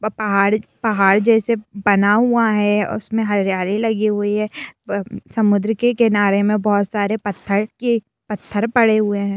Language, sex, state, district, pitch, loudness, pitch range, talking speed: Hindi, female, Bihar, Saran, 210 Hz, -18 LUFS, 205-220 Hz, 165 wpm